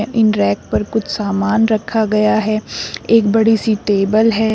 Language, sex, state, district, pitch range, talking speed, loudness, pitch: Hindi, female, Uttar Pradesh, Shamli, 210-220 Hz, 170 wpm, -15 LUFS, 215 Hz